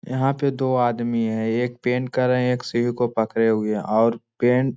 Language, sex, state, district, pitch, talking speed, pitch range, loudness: Hindi, male, Jharkhand, Jamtara, 120 Hz, 240 wpm, 115-125 Hz, -22 LUFS